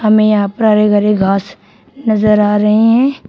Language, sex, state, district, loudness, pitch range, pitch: Hindi, female, Uttar Pradesh, Shamli, -12 LUFS, 205-215 Hz, 210 Hz